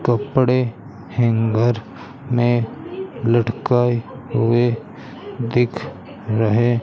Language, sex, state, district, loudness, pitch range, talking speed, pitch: Hindi, male, Rajasthan, Bikaner, -19 LUFS, 115-125 Hz, 60 wpm, 120 Hz